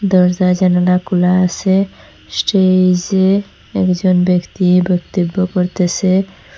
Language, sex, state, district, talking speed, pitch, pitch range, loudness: Bengali, female, Assam, Hailakandi, 75 wpm, 185 Hz, 180-190 Hz, -14 LUFS